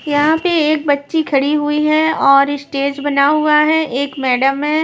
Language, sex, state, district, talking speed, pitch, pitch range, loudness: Hindi, female, Maharashtra, Washim, 185 wpm, 295 Hz, 280-305 Hz, -14 LUFS